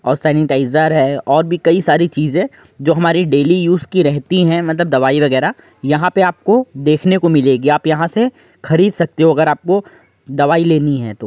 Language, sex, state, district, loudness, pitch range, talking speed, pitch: Hindi, male, Uttar Pradesh, Jyotiba Phule Nagar, -14 LUFS, 145-175 Hz, 190 wpm, 160 Hz